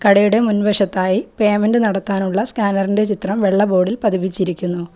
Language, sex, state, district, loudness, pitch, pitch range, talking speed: Malayalam, female, Kerala, Kollam, -17 LUFS, 200 Hz, 190-210 Hz, 110 wpm